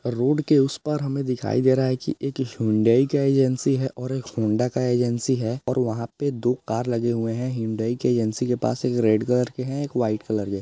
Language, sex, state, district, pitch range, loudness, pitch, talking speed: Hindi, male, Bihar, Gopalganj, 115-130 Hz, -23 LUFS, 125 Hz, 245 wpm